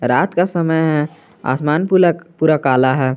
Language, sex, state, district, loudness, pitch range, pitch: Hindi, male, Jharkhand, Garhwa, -16 LUFS, 130-170 Hz, 155 Hz